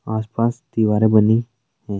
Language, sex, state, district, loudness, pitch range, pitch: Hindi, male, Rajasthan, Nagaur, -18 LUFS, 110-120 Hz, 110 Hz